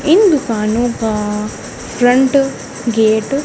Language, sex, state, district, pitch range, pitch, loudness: Hindi, female, Haryana, Charkhi Dadri, 220-270 Hz, 240 Hz, -14 LUFS